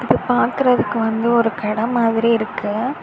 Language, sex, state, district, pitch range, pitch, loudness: Tamil, female, Tamil Nadu, Kanyakumari, 225-240 Hz, 230 Hz, -18 LUFS